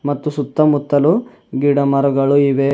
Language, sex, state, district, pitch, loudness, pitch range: Kannada, male, Karnataka, Bidar, 145 Hz, -15 LUFS, 140-145 Hz